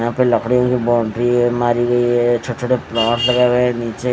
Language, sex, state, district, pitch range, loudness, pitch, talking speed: Hindi, male, Odisha, Nuapada, 120-125 Hz, -16 LUFS, 120 Hz, 230 wpm